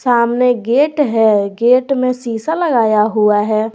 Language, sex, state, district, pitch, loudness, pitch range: Hindi, female, Jharkhand, Garhwa, 235 Hz, -14 LUFS, 220-255 Hz